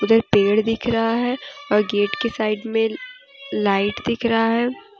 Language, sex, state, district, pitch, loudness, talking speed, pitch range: Hindi, female, Jharkhand, Deoghar, 225 Hz, -20 LUFS, 170 wpm, 210-245 Hz